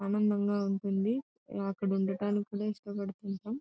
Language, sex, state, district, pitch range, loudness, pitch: Telugu, female, Andhra Pradesh, Anantapur, 195-210 Hz, -33 LUFS, 205 Hz